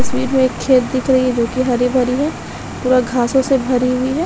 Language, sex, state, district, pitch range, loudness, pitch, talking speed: Hindi, female, Jharkhand, Sahebganj, 250-260 Hz, -16 LUFS, 255 Hz, 225 wpm